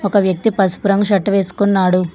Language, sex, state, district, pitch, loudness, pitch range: Telugu, female, Telangana, Hyderabad, 200 Hz, -15 LUFS, 185-200 Hz